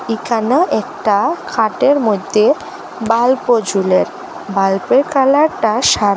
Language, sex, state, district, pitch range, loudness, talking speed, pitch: Bengali, female, Assam, Hailakandi, 205-270 Hz, -14 LUFS, 85 wpm, 225 Hz